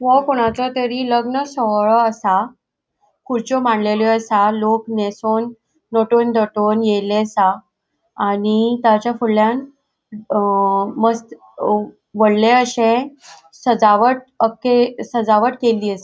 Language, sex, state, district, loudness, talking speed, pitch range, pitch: Konkani, female, Goa, North and South Goa, -17 LUFS, 105 wpm, 210-245 Hz, 225 Hz